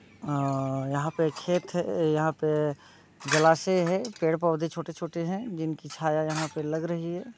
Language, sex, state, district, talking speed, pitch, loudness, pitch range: Hindi, male, Bihar, Muzaffarpur, 160 wpm, 160 Hz, -28 LUFS, 155-170 Hz